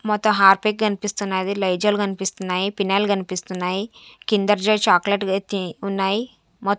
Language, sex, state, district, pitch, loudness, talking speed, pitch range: Telugu, female, Andhra Pradesh, Sri Satya Sai, 200 Hz, -21 LUFS, 115 wpm, 190-210 Hz